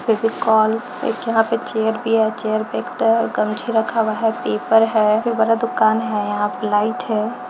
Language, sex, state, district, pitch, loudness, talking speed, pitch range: Hindi, female, Bihar, Jahanabad, 220 Hz, -19 LUFS, 210 wpm, 215-225 Hz